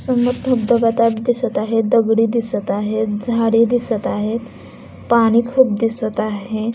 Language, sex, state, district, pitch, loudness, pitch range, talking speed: Marathi, female, Maharashtra, Dhule, 230 Hz, -17 LUFS, 225-240 Hz, 135 wpm